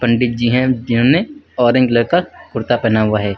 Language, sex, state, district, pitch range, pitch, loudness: Hindi, male, Uttar Pradesh, Lucknow, 115-130 Hz, 120 Hz, -15 LUFS